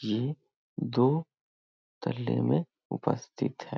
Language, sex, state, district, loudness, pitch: Hindi, male, Bihar, Muzaffarpur, -31 LUFS, 125 Hz